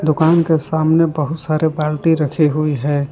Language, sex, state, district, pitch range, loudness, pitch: Hindi, male, Jharkhand, Palamu, 150-160 Hz, -16 LUFS, 155 Hz